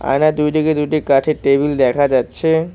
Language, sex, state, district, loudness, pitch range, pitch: Bengali, male, West Bengal, Cooch Behar, -15 LUFS, 140-155 Hz, 150 Hz